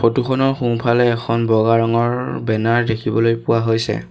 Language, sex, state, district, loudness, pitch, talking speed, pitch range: Assamese, male, Assam, Sonitpur, -17 LUFS, 115 Hz, 130 wpm, 115-120 Hz